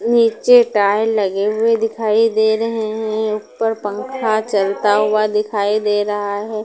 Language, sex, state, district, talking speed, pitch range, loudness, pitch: Hindi, female, Punjab, Pathankot, 145 wpm, 210-225 Hz, -17 LUFS, 215 Hz